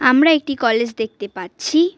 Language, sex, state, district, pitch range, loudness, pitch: Bengali, female, West Bengal, Cooch Behar, 225-310 Hz, -18 LUFS, 255 Hz